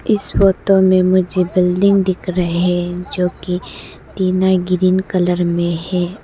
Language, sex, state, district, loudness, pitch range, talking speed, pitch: Hindi, female, Arunachal Pradesh, Lower Dibang Valley, -16 LUFS, 180-190 Hz, 145 wpm, 180 Hz